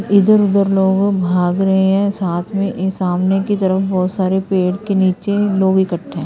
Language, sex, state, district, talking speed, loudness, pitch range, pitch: Hindi, female, Punjab, Kapurthala, 190 wpm, -15 LUFS, 185-200 Hz, 190 Hz